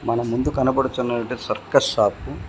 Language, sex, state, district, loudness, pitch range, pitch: Telugu, male, Telangana, Komaram Bheem, -21 LUFS, 120-130 Hz, 125 Hz